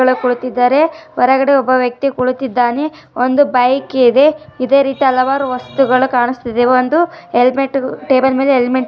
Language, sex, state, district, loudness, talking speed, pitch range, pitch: Kannada, female, Karnataka, Dharwad, -13 LUFS, 135 wpm, 250-275 Hz, 260 Hz